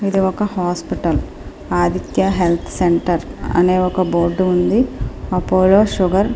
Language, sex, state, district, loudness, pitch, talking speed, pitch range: Telugu, female, Andhra Pradesh, Srikakulam, -17 LUFS, 185 Hz, 125 wpm, 175-195 Hz